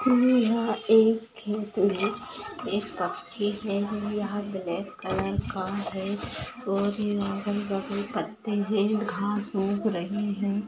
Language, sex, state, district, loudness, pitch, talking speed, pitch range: Hindi, female, Maharashtra, Chandrapur, -26 LUFS, 205 Hz, 120 wpm, 200-215 Hz